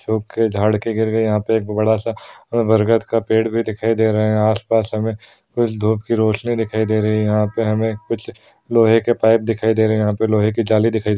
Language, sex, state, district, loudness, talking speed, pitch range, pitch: Hindi, male, Bihar, Bhagalpur, -18 LUFS, 250 wpm, 110-115 Hz, 110 Hz